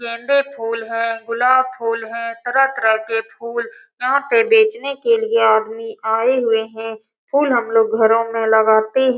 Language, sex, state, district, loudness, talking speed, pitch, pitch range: Hindi, female, Bihar, Saran, -17 LUFS, 165 wpm, 230 Hz, 225-250 Hz